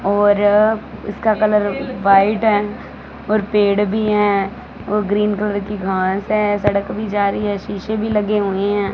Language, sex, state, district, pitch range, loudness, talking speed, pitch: Hindi, female, Punjab, Fazilka, 200-215 Hz, -17 LUFS, 170 wpm, 205 Hz